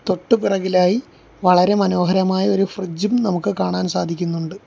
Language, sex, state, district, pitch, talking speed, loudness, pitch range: Malayalam, male, Kerala, Kollam, 185 Hz, 130 wpm, -18 LUFS, 170-195 Hz